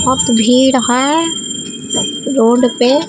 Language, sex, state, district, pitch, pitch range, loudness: Hindi, female, Bihar, Katihar, 250 Hz, 240-265 Hz, -12 LUFS